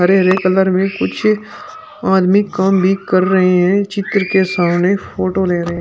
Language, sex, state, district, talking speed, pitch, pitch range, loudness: Hindi, male, Uttar Pradesh, Shamli, 175 wpm, 190 Hz, 185-200 Hz, -14 LUFS